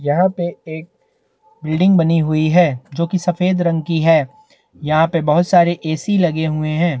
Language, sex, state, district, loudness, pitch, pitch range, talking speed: Hindi, male, Chhattisgarh, Bastar, -16 LUFS, 170 Hz, 155-180 Hz, 180 wpm